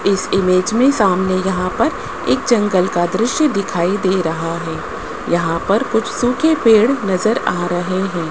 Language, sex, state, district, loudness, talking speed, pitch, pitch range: Hindi, male, Rajasthan, Jaipur, -16 LUFS, 165 wpm, 190 Hz, 180-225 Hz